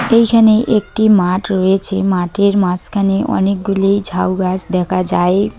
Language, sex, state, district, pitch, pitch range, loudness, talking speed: Bengali, female, West Bengal, Cooch Behar, 195 Hz, 185-205 Hz, -14 LUFS, 120 wpm